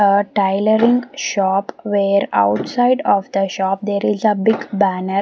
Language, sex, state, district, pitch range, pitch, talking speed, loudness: English, female, Maharashtra, Gondia, 195-215 Hz, 200 Hz, 150 wpm, -17 LUFS